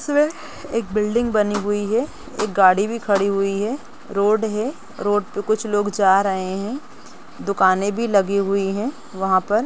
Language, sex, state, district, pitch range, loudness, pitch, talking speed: Hindi, female, Chhattisgarh, Rajnandgaon, 200-235 Hz, -20 LUFS, 205 Hz, 175 wpm